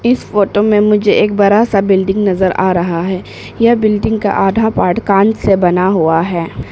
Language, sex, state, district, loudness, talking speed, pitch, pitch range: Hindi, female, Arunachal Pradesh, Papum Pare, -12 LUFS, 195 wpm, 200 Hz, 185-210 Hz